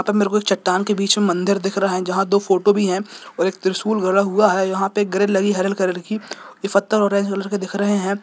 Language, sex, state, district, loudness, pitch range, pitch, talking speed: Hindi, male, Jharkhand, Jamtara, -19 LUFS, 190-205 Hz, 195 Hz, 270 wpm